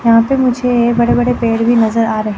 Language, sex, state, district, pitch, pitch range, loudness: Hindi, female, Chandigarh, Chandigarh, 235 Hz, 225-245 Hz, -13 LUFS